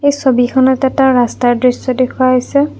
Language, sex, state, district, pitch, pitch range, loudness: Assamese, female, Assam, Kamrup Metropolitan, 260 Hz, 250-265 Hz, -12 LUFS